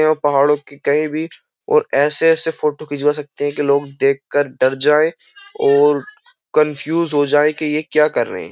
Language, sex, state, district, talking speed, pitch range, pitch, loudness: Hindi, male, Uttar Pradesh, Jyotiba Phule Nagar, 185 wpm, 145-165 Hz, 150 Hz, -16 LUFS